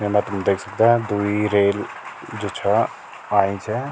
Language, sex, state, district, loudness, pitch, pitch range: Garhwali, male, Uttarakhand, Tehri Garhwal, -21 LUFS, 105 Hz, 100-105 Hz